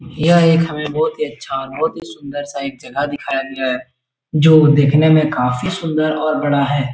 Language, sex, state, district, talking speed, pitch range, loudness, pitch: Hindi, male, Uttar Pradesh, Etah, 205 wpm, 135-155 Hz, -16 LUFS, 145 Hz